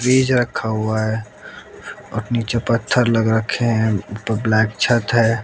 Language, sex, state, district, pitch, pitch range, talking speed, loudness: Hindi, male, Haryana, Jhajjar, 110 Hz, 110-120 Hz, 155 wpm, -19 LUFS